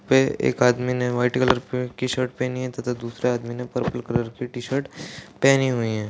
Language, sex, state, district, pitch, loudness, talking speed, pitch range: Hindi, male, Uttar Pradesh, Deoria, 125 Hz, -23 LUFS, 215 wpm, 120-130 Hz